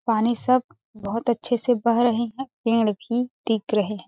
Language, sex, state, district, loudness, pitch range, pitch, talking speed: Hindi, female, Chhattisgarh, Balrampur, -23 LUFS, 220-240 Hz, 230 Hz, 190 wpm